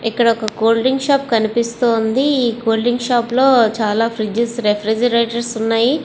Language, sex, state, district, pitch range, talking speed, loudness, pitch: Telugu, female, Andhra Pradesh, Visakhapatnam, 225-245 Hz, 160 wpm, -16 LUFS, 235 Hz